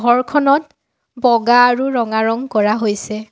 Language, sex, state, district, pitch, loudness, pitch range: Assamese, female, Assam, Sonitpur, 240 Hz, -15 LUFS, 220-255 Hz